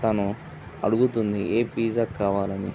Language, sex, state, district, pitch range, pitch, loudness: Telugu, male, Andhra Pradesh, Visakhapatnam, 100-115 Hz, 110 Hz, -25 LUFS